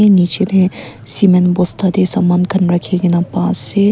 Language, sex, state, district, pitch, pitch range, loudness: Nagamese, female, Nagaland, Kohima, 185 Hz, 180-195 Hz, -13 LUFS